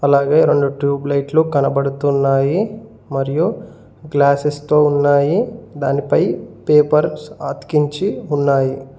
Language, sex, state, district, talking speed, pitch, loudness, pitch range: Telugu, male, Telangana, Mahabubabad, 85 wpm, 140 Hz, -17 LUFS, 140-150 Hz